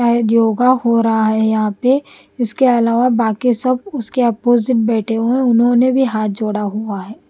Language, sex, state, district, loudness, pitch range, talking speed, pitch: Hindi, female, Bihar, West Champaran, -15 LUFS, 220-250 Hz, 175 wpm, 235 Hz